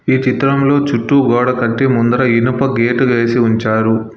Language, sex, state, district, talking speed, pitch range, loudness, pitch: Telugu, male, Telangana, Hyderabad, 145 wpm, 115-130 Hz, -13 LUFS, 120 Hz